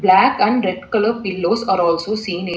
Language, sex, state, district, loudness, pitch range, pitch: English, female, Telangana, Hyderabad, -17 LUFS, 185-225 Hz, 195 Hz